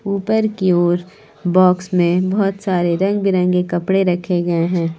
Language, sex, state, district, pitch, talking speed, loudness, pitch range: Hindi, female, Jharkhand, Palamu, 180 Hz, 155 wpm, -17 LUFS, 175-195 Hz